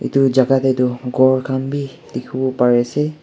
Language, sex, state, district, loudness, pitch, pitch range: Nagamese, male, Nagaland, Kohima, -17 LUFS, 130 Hz, 125-135 Hz